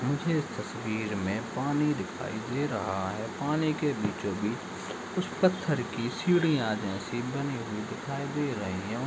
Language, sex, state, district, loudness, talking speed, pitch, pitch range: Hindi, male, Uttar Pradesh, Deoria, -31 LUFS, 160 wpm, 130 Hz, 110-150 Hz